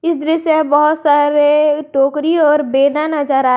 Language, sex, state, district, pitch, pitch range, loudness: Hindi, female, Jharkhand, Garhwa, 295 Hz, 290-310 Hz, -13 LUFS